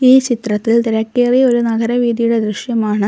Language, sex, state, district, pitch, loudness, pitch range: Malayalam, female, Kerala, Kollam, 230 Hz, -14 LUFS, 220-245 Hz